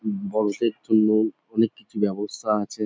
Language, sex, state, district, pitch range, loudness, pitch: Bengali, male, West Bengal, North 24 Parganas, 105-110 Hz, -24 LUFS, 110 Hz